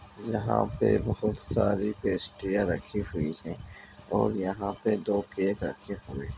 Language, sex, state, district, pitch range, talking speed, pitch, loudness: Hindi, male, Bihar, Begusarai, 100-105 Hz, 150 wpm, 100 Hz, -30 LUFS